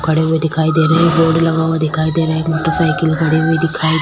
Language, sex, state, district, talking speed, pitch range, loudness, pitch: Hindi, female, Chhattisgarh, Kabirdham, 315 wpm, 160-165 Hz, -14 LUFS, 160 Hz